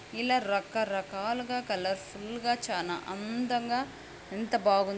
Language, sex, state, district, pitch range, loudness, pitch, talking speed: Telugu, female, Andhra Pradesh, Anantapur, 195-240 Hz, -32 LUFS, 220 Hz, 110 wpm